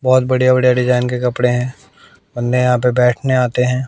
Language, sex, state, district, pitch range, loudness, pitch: Hindi, male, Bihar, West Champaran, 125-130 Hz, -15 LUFS, 125 Hz